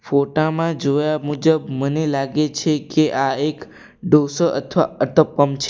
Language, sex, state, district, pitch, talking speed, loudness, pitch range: Gujarati, male, Gujarat, Valsad, 150 Hz, 145 wpm, -19 LUFS, 140-155 Hz